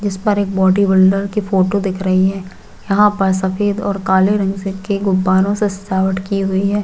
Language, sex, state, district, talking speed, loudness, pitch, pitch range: Hindi, female, Chhattisgarh, Jashpur, 200 wpm, -16 LUFS, 195 Hz, 190-200 Hz